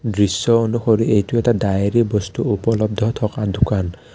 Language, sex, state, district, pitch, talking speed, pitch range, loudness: Assamese, male, Assam, Kamrup Metropolitan, 110 Hz, 130 wpm, 100-115 Hz, -18 LUFS